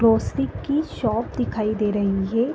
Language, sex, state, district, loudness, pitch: Hindi, female, Uttar Pradesh, Deoria, -23 LUFS, 205 Hz